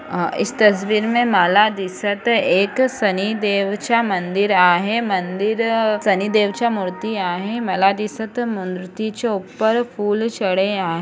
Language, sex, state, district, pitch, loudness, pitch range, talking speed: Marathi, female, Maharashtra, Sindhudurg, 205 Hz, -18 LUFS, 190-225 Hz, 130 wpm